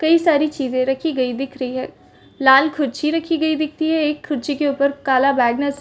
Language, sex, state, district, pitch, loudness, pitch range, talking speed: Hindi, female, Chhattisgarh, Bastar, 285 Hz, -18 LUFS, 265-310 Hz, 225 wpm